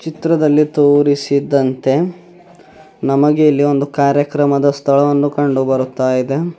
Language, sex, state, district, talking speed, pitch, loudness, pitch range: Kannada, male, Karnataka, Bidar, 90 wpm, 145 Hz, -14 LUFS, 140-150 Hz